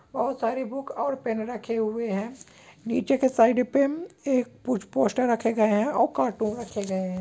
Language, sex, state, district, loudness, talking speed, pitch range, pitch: Hindi, female, Bihar, East Champaran, -26 LUFS, 190 wpm, 220-260 Hz, 230 Hz